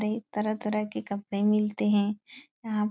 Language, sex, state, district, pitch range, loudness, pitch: Hindi, female, Bihar, Supaul, 210-215 Hz, -28 LUFS, 210 Hz